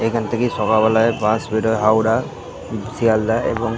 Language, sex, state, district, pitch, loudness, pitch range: Bengali, male, West Bengal, Jalpaiguri, 110 Hz, -18 LUFS, 110-115 Hz